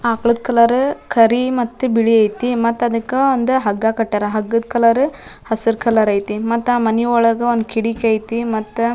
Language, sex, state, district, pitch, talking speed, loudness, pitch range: Kannada, female, Karnataka, Dharwad, 230 Hz, 155 wpm, -16 LUFS, 225-240 Hz